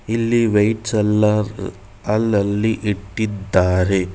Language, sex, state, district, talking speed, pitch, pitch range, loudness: Kannada, male, Karnataka, Bangalore, 70 wpm, 105 Hz, 100-110 Hz, -18 LUFS